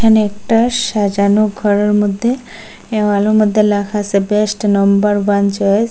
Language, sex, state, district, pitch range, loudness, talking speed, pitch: Bengali, female, Assam, Hailakandi, 205-215 Hz, -14 LUFS, 130 wpm, 210 Hz